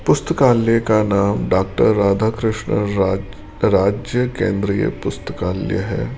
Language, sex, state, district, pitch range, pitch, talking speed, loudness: Hindi, male, Rajasthan, Jaipur, 100-115 Hz, 100 Hz, 95 wpm, -18 LUFS